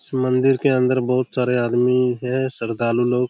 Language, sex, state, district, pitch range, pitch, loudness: Hindi, male, Jharkhand, Jamtara, 125-130 Hz, 125 Hz, -19 LUFS